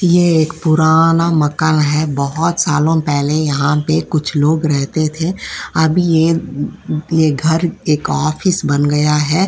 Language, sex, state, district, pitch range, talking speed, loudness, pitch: Hindi, female, Uttar Pradesh, Jyotiba Phule Nagar, 150-165 Hz, 145 wpm, -15 LUFS, 155 Hz